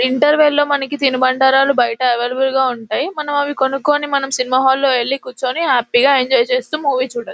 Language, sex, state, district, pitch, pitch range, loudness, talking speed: Telugu, female, Telangana, Nalgonda, 270 Hz, 255-290 Hz, -15 LUFS, 195 wpm